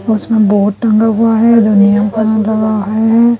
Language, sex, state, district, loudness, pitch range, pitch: Hindi, female, Chhattisgarh, Raipur, -11 LUFS, 210-225 Hz, 220 Hz